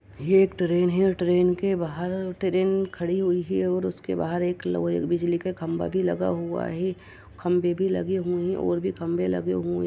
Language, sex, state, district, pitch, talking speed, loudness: Hindi, female, Uttar Pradesh, Budaun, 175 Hz, 215 wpm, -25 LUFS